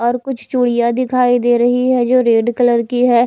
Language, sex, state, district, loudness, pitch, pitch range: Hindi, female, Chhattisgarh, Raipur, -14 LUFS, 245 Hz, 240-250 Hz